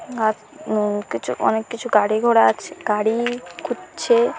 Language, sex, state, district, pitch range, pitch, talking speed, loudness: Bengali, female, West Bengal, Paschim Medinipur, 210-235 Hz, 220 Hz, 135 wpm, -21 LUFS